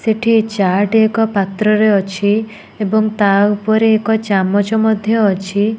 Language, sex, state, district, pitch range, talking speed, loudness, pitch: Odia, female, Odisha, Nuapada, 200-220 Hz, 125 wpm, -14 LUFS, 215 Hz